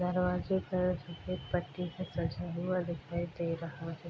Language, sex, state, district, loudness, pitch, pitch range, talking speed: Hindi, female, Bihar, Darbhanga, -35 LUFS, 175 Hz, 170-180 Hz, 160 wpm